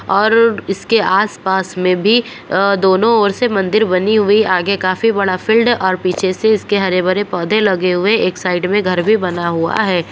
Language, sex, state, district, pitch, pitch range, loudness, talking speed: Hindi, female, Bihar, Purnia, 195 Hz, 185-215 Hz, -14 LUFS, 190 wpm